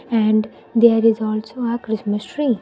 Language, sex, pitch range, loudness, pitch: English, female, 215-235 Hz, -19 LUFS, 225 Hz